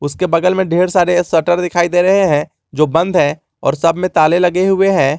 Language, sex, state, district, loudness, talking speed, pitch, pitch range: Hindi, male, Jharkhand, Garhwa, -14 LUFS, 230 wpm, 175 Hz, 155-185 Hz